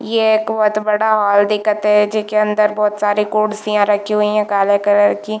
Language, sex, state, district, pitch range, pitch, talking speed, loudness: Hindi, female, Chhattisgarh, Bilaspur, 205-215 Hz, 210 Hz, 200 wpm, -15 LUFS